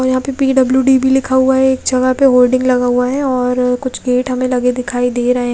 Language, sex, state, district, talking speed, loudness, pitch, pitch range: Hindi, female, Odisha, Khordha, 260 wpm, -13 LUFS, 255 Hz, 250-260 Hz